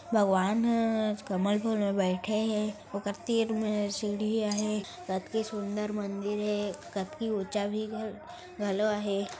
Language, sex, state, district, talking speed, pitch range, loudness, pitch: Chhattisgarhi, female, Chhattisgarh, Raigarh, 145 wpm, 200-220 Hz, -31 LUFS, 210 Hz